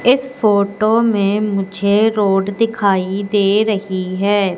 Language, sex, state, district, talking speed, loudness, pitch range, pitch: Hindi, female, Madhya Pradesh, Katni, 120 wpm, -16 LUFS, 195-215 Hz, 205 Hz